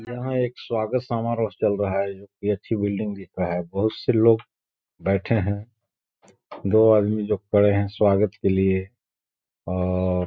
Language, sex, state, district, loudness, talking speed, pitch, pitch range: Hindi, male, Chhattisgarh, Balrampur, -23 LUFS, 160 wpm, 100 Hz, 95-110 Hz